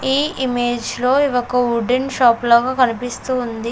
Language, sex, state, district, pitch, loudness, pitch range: Telugu, female, Andhra Pradesh, Sri Satya Sai, 245 Hz, -17 LUFS, 240-260 Hz